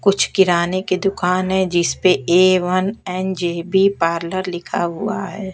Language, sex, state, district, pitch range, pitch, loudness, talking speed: Hindi, female, Haryana, Jhajjar, 175-190 Hz, 185 Hz, -18 LUFS, 150 wpm